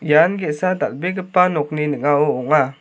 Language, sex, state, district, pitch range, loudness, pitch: Garo, male, Meghalaya, South Garo Hills, 145-185 Hz, -18 LUFS, 155 Hz